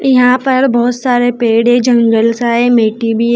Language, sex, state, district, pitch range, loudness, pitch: Hindi, female, Uttar Pradesh, Shamli, 230-250 Hz, -11 LUFS, 240 Hz